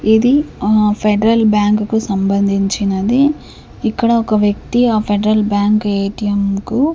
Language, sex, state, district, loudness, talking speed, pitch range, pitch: Telugu, female, Andhra Pradesh, Sri Satya Sai, -14 LUFS, 120 wpm, 205-225 Hz, 210 Hz